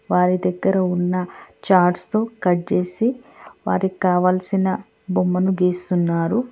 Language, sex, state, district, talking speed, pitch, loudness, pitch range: Telugu, female, Telangana, Hyderabad, 100 wpm, 185 Hz, -20 LUFS, 180-195 Hz